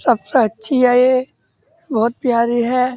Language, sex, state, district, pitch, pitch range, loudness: Hindi, male, Uttar Pradesh, Muzaffarnagar, 250 Hz, 235-255 Hz, -16 LUFS